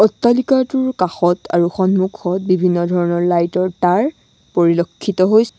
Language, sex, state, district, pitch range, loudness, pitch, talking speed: Assamese, female, Assam, Sonitpur, 175-220 Hz, -16 LUFS, 185 Hz, 120 wpm